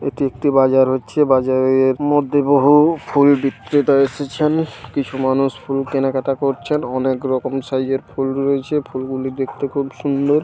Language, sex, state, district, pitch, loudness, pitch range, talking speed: Bengali, male, West Bengal, Paschim Medinipur, 135 Hz, -17 LUFS, 130-145 Hz, 140 wpm